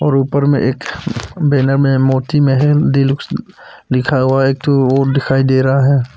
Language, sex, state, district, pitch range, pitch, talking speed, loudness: Hindi, male, Arunachal Pradesh, Papum Pare, 130-140 Hz, 135 Hz, 165 wpm, -14 LUFS